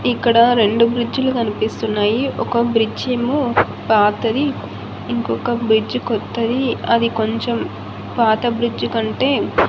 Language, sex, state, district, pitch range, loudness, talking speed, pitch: Telugu, female, Andhra Pradesh, Annamaya, 220-240 Hz, -18 LUFS, 105 wpm, 230 Hz